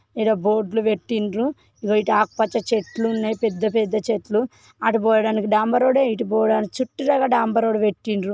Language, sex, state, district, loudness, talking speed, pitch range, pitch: Telugu, female, Telangana, Karimnagar, -21 LUFS, 160 wpm, 215-230 Hz, 220 Hz